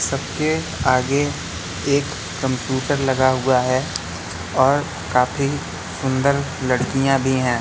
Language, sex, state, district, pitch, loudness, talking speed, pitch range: Hindi, male, Madhya Pradesh, Katni, 130 Hz, -20 LUFS, 110 wpm, 125-140 Hz